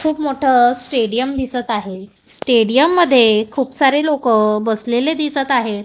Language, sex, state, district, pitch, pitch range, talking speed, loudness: Marathi, female, Maharashtra, Gondia, 250 Hz, 225-275 Hz, 135 wpm, -15 LUFS